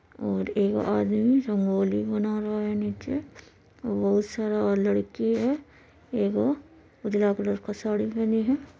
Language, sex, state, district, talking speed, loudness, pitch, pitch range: Maithili, female, Bihar, Supaul, 130 wpm, -26 LUFS, 210 Hz, 200-225 Hz